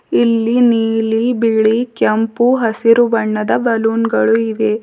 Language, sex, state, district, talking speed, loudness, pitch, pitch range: Kannada, female, Karnataka, Bidar, 110 wpm, -14 LUFS, 225 Hz, 220-235 Hz